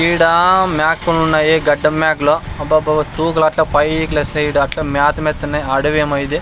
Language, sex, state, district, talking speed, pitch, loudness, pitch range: Telugu, male, Andhra Pradesh, Sri Satya Sai, 130 wpm, 155 Hz, -15 LUFS, 150-160 Hz